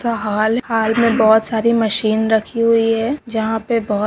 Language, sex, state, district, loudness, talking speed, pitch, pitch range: Hindi, female, West Bengal, Jalpaiguri, -16 LUFS, 190 wpm, 225 Hz, 220-230 Hz